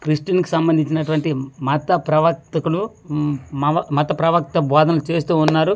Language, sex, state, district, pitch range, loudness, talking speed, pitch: Telugu, male, Andhra Pradesh, Manyam, 150-165 Hz, -19 LUFS, 115 wpm, 155 Hz